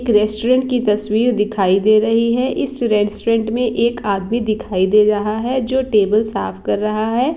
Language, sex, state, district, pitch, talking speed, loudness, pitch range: Hindi, female, Bihar, East Champaran, 220 Hz, 185 wpm, -17 LUFS, 210-240 Hz